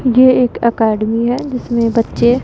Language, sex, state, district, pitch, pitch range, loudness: Hindi, female, Punjab, Pathankot, 235 Hz, 230-250 Hz, -14 LUFS